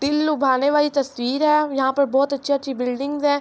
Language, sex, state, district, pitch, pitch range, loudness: Urdu, female, Andhra Pradesh, Anantapur, 280 Hz, 270-290 Hz, -20 LUFS